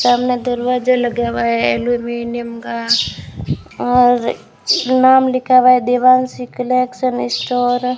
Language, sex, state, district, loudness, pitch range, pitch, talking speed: Hindi, female, Rajasthan, Bikaner, -15 LUFS, 235-255 Hz, 245 Hz, 120 wpm